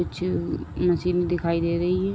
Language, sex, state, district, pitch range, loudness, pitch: Hindi, female, Uttar Pradesh, Ghazipur, 170-180 Hz, -25 LUFS, 175 Hz